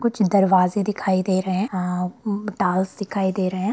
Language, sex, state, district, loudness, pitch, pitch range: Hindi, female, Bihar, Sitamarhi, -22 LUFS, 190 Hz, 185-205 Hz